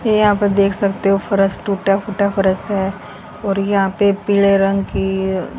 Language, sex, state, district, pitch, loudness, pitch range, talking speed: Hindi, female, Haryana, Jhajjar, 195 Hz, -17 LUFS, 195-205 Hz, 170 wpm